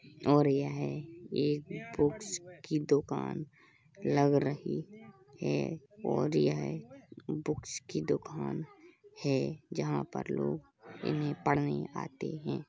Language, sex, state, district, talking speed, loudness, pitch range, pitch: Hindi, male, Uttar Pradesh, Hamirpur, 105 wpm, -34 LUFS, 140-180 Hz, 145 Hz